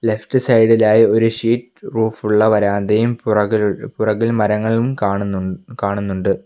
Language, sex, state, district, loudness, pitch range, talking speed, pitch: Malayalam, male, Kerala, Kollam, -16 LUFS, 100-115 Hz, 100 wpm, 110 Hz